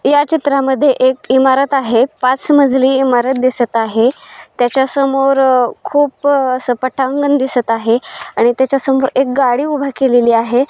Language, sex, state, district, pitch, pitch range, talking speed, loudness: Marathi, female, Maharashtra, Solapur, 265 Hz, 250-275 Hz, 145 wpm, -13 LUFS